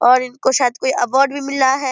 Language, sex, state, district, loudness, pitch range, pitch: Hindi, female, Bihar, Purnia, -16 LUFS, 250-270 Hz, 265 Hz